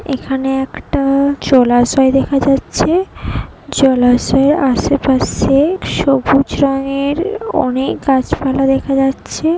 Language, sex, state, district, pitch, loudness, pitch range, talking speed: Bengali, female, West Bengal, Jhargram, 270 Hz, -14 LUFS, 265-285 Hz, 80 wpm